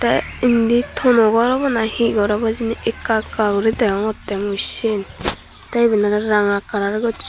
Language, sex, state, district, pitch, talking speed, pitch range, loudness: Chakma, female, Tripura, Dhalai, 220 Hz, 180 wpm, 210-230 Hz, -18 LUFS